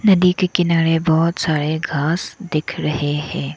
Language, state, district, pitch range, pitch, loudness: Hindi, Arunachal Pradesh, Lower Dibang Valley, 150-175 Hz, 165 Hz, -18 LUFS